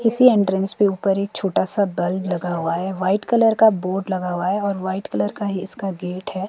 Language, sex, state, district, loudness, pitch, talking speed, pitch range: Hindi, female, Himachal Pradesh, Shimla, -20 LUFS, 195 Hz, 240 wpm, 185-205 Hz